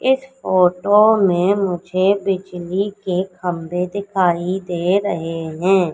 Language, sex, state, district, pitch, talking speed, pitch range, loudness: Hindi, female, Madhya Pradesh, Katni, 185 Hz, 110 wpm, 175-200 Hz, -18 LUFS